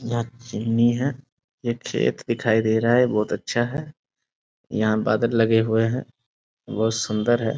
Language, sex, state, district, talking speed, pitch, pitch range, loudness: Hindi, male, Bihar, Sitamarhi, 160 wpm, 115 Hz, 110-120 Hz, -22 LUFS